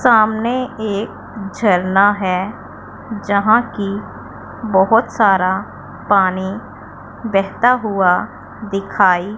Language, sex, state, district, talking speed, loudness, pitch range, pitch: Hindi, female, Punjab, Pathankot, 75 wpm, -16 LUFS, 190-220 Hz, 200 Hz